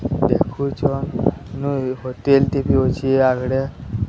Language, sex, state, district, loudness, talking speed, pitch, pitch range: Odia, male, Odisha, Sambalpur, -19 LUFS, 90 wpm, 135 Hz, 130-140 Hz